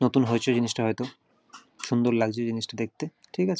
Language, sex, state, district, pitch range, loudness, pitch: Bengali, male, West Bengal, North 24 Parganas, 115-125 Hz, -27 LUFS, 120 Hz